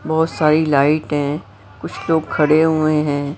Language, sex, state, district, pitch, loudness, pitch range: Hindi, female, Maharashtra, Mumbai Suburban, 155 Hz, -17 LUFS, 145-160 Hz